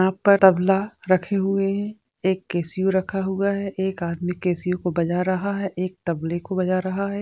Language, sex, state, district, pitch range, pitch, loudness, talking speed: Hindi, male, Bihar, Jamui, 180-195 Hz, 190 Hz, -23 LUFS, 200 wpm